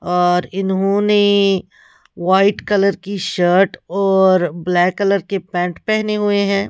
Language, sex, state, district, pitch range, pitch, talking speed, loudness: Hindi, female, Punjab, Pathankot, 180-200 Hz, 195 Hz, 135 wpm, -16 LUFS